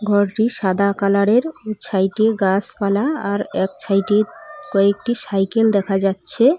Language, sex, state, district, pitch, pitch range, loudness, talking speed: Bengali, female, West Bengal, Cooch Behar, 205 Hz, 195-225 Hz, -17 LUFS, 120 wpm